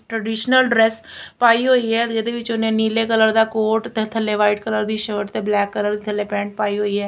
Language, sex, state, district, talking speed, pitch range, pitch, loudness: Punjabi, female, Punjab, Kapurthala, 220 wpm, 210-225 Hz, 220 Hz, -19 LUFS